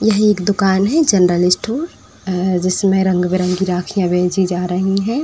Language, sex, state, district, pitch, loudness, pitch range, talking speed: Hindi, female, Uttar Pradesh, Etah, 185 Hz, -16 LUFS, 180-205 Hz, 170 wpm